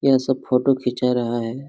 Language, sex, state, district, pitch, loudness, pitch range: Hindi, male, Jharkhand, Jamtara, 125 Hz, -20 LUFS, 125-135 Hz